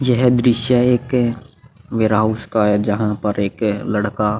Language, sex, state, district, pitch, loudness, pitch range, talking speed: Hindi, male, Chhattisgarh, Korba, 110 Hz, -17 LUFS, 105-120 Hz, 150 wpm